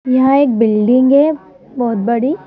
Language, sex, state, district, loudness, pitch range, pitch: Hindi, female, Madhya Pradesh, Bhopal, -13 LUFS, 235-280 Hz, 255 Hz